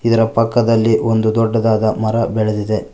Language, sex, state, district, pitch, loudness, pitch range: Kannada, male, Karnataka, Koppal, 115 Hz, -15 LUFS, 110-115 Hz